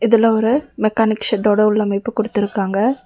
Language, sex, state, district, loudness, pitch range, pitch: Tamil, female, Tamil Nadu, Nilgiris, -17 LUFS, 210-230 Hz, 215 Hz